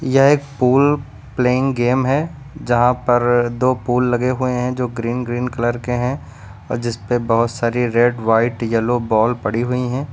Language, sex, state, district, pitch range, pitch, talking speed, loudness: Hindi, male, Uttar Pradesh, Lucknow, 120-125 Hz, 125 Hz, 175 wpm, -18 LUFS